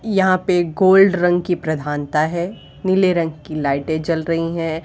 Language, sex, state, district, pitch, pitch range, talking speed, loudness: Hindi, female, Uttar Pradesh, Varanasi, 165 Hz, 155-185 Hz, 175 wpm, -18 LUFS